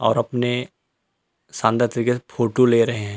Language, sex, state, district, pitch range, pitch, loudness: Hindi, male, Chhattisgarh, Rajnandgaon, 115-125 Hz, 120 Hz, -20 LUFS